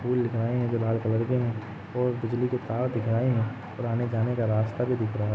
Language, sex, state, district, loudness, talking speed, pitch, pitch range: Hindi, male, Jharkhand, Sahebganj, -27 LUFS, 290 wpm, 115 Hz, 110-125 Hz